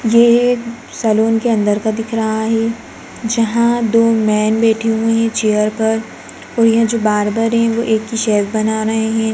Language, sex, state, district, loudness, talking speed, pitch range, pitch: Hindi, female, Bihar, Gaya, -15 LUFS, 185 wpm, 220-230 Hz, 225 Hz